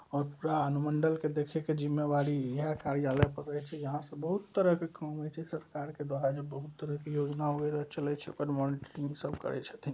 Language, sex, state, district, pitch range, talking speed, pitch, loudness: Maithili, male, Bihar, Saharsa, 145-155 Hz, 230 wpm, 150 Hz, -34 LUFS